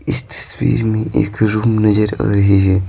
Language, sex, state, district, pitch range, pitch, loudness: Hindi, male, Bihar, Patna, 100-110 Hz, 105 Hz, -14 LUFS